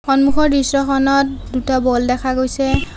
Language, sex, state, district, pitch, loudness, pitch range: Assamese, female, Assam, Sonitpur, 270 Hz, -16 LUFS, 260-275 Hz